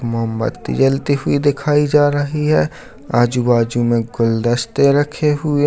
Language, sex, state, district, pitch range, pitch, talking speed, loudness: Hindi, male, Bihar, Darbhanga, 120-145 Hz, 135 Hz, 140 wpm, -16 LUFS